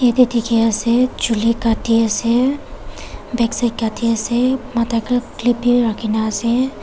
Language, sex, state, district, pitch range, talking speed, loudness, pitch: Nagamese, female, Nagaland, Kohima, 225-245 Hz, 105 wpm, -17 LUFS, 235 Hz